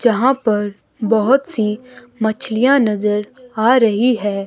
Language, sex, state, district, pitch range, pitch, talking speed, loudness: Hindi, female, Himachal Pradesh, Shimla, 210-250 Hz, 225 Hz, 120 wpm, -16 LUFS